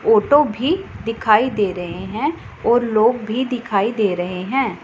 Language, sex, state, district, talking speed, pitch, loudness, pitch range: Hindi, female, Punjab, Pathankot, 160 wpm, 225 Hz, -19 LUFS, 205-260 Hz